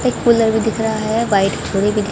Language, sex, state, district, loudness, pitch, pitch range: Hindi, female, Haryana, Jhajjar, -16 LUFS, 220 Hz, 205-225 Hz